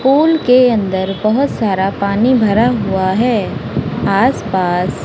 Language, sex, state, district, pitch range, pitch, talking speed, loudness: Hindi, female, Punjab, Kapurthala, 190-245 Hz, 210 Hz, 120 wpm, -14 LUFS